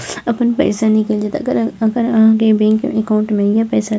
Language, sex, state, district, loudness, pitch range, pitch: Maithili, female, Bihar, Purnia, -15 LUFS, 215-230 Hz, 220 Hz